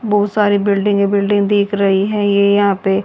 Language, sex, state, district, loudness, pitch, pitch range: Hindi, female, Haryana, Charkhi Dadri, -14 LUFS, 200 Hz, 200-205 Hz